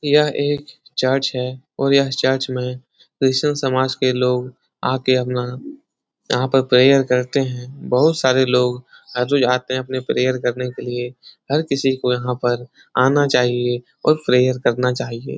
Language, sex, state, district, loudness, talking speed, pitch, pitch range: Hindi, male, Uttar Pradesh, Etah, -19 LUFS, 170 wpm, 130 Hz, 125-135 Hz